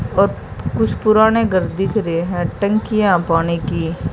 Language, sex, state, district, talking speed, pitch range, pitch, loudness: Hindi, female, Haryana, Jhajjar, 160 wpm, 170-215 Hz, 185 Hz, -17 LUFS